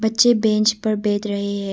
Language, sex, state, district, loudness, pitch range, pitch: Hindi, female, Arunachal Pradesh, Papum Pare, -19 LUFS, 205-220 Hz, 215 Hz